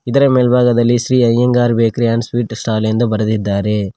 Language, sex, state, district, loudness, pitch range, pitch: Kannada, male, Karnataka, Koppal, -14 LUFS, 110-120 Hz, 120 Hz